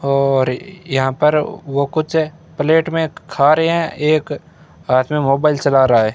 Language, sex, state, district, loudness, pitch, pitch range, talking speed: Hindi, male, Rajasthan, Bikaner, -16 LUFS, 150 Hz, 135-160 Hz, 165 wpm